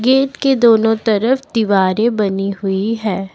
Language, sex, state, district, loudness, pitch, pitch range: Hindi, female, Assam, Kamrup Metropolitan, -15 LUFS, 220 Hz, 195-240 Hz